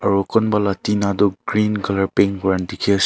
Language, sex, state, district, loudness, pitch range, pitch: Nagamese, male, Nagaland, Kohima, -19 LUFS, 95-105 Hz, 100 Hz